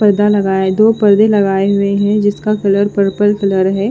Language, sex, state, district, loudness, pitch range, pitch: Hindi, female, Odisha, Khordha, -12 LUFS, 195-210 Hz, 200 Hz